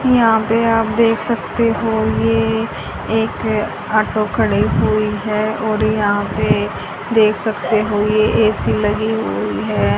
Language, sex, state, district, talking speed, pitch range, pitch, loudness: Hindi, female, Haryana, Charkhi Dadri, 140 wpm, 210-225 Hz, 215 Hz, -17 LUFS